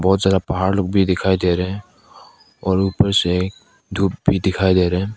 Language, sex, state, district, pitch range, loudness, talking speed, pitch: Hindi, male, Nagaland, Kohima, 90-100 Hz, -18 LUFS, 210 wpm, 95 Hz